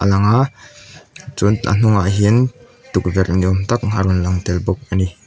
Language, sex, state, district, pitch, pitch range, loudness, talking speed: Mizo, male, Mizoram, Aizawl, 100 Hz, 95-120 Hz, -17 LUFS, 195 wpm